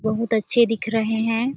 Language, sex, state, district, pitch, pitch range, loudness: Hindi, female, Chhattisgarh, Sarguja, 225 Hz, 220-230 Hz, -21 LUFS